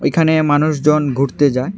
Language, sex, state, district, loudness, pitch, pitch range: Bengali, male, Tripura, West Tripura, -15 LUFS, 150 Hz, 140-155 Hz